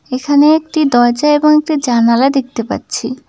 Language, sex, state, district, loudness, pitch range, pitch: Bengali, female, West Bengal, Cooch Behar, -12 LUFS, 240-300 Hz, 275 Hz